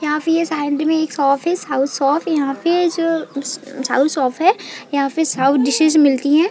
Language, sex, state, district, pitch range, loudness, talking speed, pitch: Hindi, female, Chhattisgarh, Bilaspur, 275-320 Hz, -17 LUFS, 185 wpm, 300 Hz